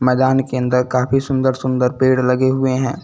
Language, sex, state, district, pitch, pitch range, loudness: Hindi, male, Uttar Pradesh, Lucknow, 130 Hz, 125-130 Hz, -17 LUFS